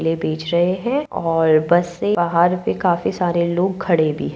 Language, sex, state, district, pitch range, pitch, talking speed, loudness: Hindi, female, Uttar Pradesh, Budaun, 165-185 Hz, 175 Hz, 195 wpm, -18 LUFS